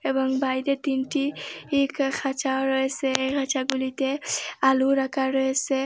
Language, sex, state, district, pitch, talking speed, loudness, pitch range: Bengali, female, Assam, Hailakandi, 270 Hz, 115 wpm, -25 LUFS, 265-275 Hz